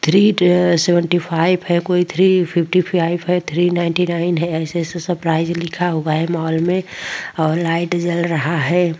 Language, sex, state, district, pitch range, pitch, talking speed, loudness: Hindi, female, Goa, North and South Goa, 165-180 Hz, 170 Hz, 175 wpm, -17 LUFS